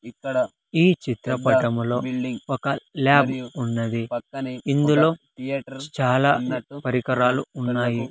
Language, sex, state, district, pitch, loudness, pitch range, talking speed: Telugu, male, Andhra Pradesh, Sri Satya Sai, 130 Hz, -23 LUFS, 125-140 Hz, 65 wpm